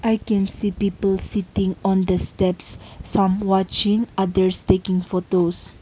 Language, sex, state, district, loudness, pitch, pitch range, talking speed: English, female, Nagaland, Kohima, -21 LUFS, 190 Hz, 185-200 Hz, 135 wpm